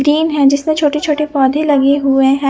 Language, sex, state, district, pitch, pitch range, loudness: Hindi, female, Punjab, Fazilka, 285 Hz, 275-300 Hz, -13 LUFS